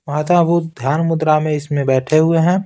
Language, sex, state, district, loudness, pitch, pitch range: Hindi, male, Bihar, Patna, -16 LUFS, 155 Hz, 145-165 Hz